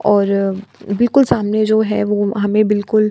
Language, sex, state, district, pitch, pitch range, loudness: Hindi, female, Bihar, Kishanganj, 210 Hz, 205-215 Hz, -15 LUFS